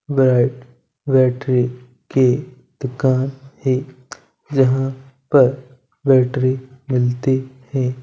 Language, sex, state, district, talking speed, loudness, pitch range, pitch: Hindi, male, Punjab, Kapurthala, 65 wpm, -18 LUFS, 125-135 Hz, 130 Hz